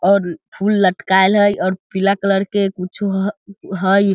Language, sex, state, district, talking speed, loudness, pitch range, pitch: Hindi, male, Bihar, Sitamarhi, 160 wpm, -17 LUFS, 190-200 Hz, 195 Hz